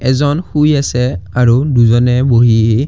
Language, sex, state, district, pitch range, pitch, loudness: Assamese, male, Assam, Kamrup Metropolitan, 120-145 Hz, 125 Hz, -12 LUFS